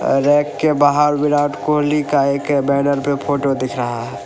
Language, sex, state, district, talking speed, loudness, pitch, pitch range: Hindi, male, Uttar Pradesh, Lalitpur, 185 wpm, -17 LUFS, 145 Hz, 135-145 Hz